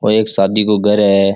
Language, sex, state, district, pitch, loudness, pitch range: Rajasthani, male, Rajasthan, Churu, 105 Hz, -13 LUFS, 100-105 Hz